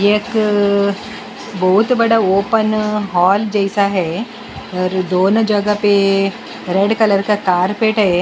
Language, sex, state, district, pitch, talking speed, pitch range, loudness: Hindi, female, Maharashtra, Mumbai Suburban, 200 Hz, 115 wpm, 195-215 Hz, -15 LUFS